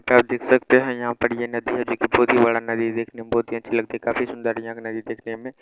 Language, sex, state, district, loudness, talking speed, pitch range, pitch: Maithili, male, Bihar, Saharsa, -22 LUFS, 330 wpm, 115-120 Hz, 120 Hz